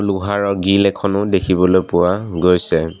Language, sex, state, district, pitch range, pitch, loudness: Assamese, male, Assam, Sonitpur, 90-100 Hz, 95 Hz, -16 LUFS